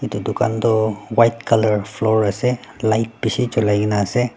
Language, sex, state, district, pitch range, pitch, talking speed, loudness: Nagamese, female, Nagaland, Dimapur, 105-115 Hz, 110 Hz, 150 wpm, -19 LUFS